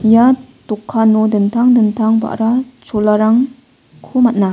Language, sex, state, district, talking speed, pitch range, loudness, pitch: Garo, female, Meghalaya, West Garo Hills, 105 wpm, 215-250 Hz, -13 LUFS, 225 Hz